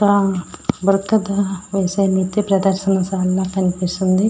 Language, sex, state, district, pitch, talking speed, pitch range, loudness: Telugu, female, Andhra Pradesh, Srikakulam, 195 Hz, 40 wpm, 185-200 Hz, -18 LUFS